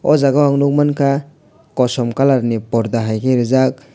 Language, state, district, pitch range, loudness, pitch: Kokborok, Tripura, West Tripura, 120-140 Hz, -15 LUFS, 130 Hz